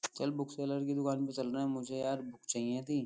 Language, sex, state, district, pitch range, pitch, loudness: Hindi, male, Uttar Pradesh, Jyotiba Phule Nagar, 130-140 Hz, 135 Hz, -37 LUFS